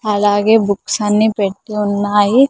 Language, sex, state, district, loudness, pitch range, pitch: Telugu, female, Andhra Pradesh, Sri Satya Sai, -14 LUFS, 205-215 Hz, 210 Hz